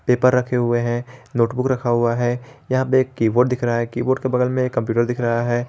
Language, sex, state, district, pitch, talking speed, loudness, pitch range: Hindi, male, Jharkhand, Garhwa, 125 Hz, 240 wpm, -20 LUFS, 120-130 Hz